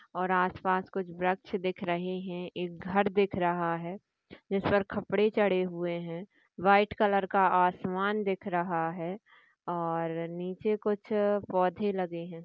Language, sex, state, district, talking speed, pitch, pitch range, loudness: Marathi, female, Maharashtra, Sindhudurg, 150 wpm, 185 Hz, 175-200 Hz, -30 LUFS